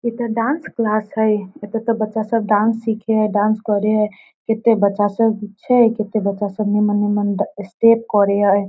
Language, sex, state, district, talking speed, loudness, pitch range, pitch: Maithili, female, Bihar, Darbhanga, 185 wpm, -18 LUFS, 205-225 Hz, 215 Hz